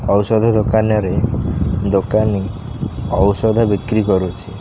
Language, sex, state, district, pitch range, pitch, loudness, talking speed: Odia, male, Odisha, Khordha, 95-110 Hz, 105 Hz, -17 LUFS, 80 wpm